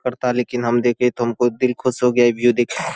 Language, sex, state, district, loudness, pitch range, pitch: Hindi, male, Bihar, Saharsa, -18 LUFS, 120-125 Hz, 120 Hz